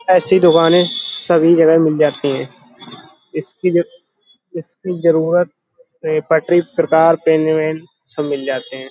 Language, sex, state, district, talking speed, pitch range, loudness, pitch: Hindi, male, Uttar Pradesh, Hamirpur, 120 wpm, 155-175 Hz, -15 LUFS, 165 Hz